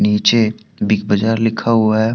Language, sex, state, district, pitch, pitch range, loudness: Hindi, male, Jharkhand, Deoghar, 110 Hz, 105-115 Hz, -15 LUFS